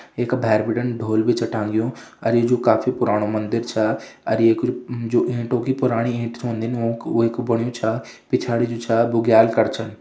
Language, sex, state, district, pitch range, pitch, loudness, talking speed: Hindi, male, Uttarakhand, Uttarkashi, 110-120 Hz, 115 Hz, -21 LUFS, 205 wpm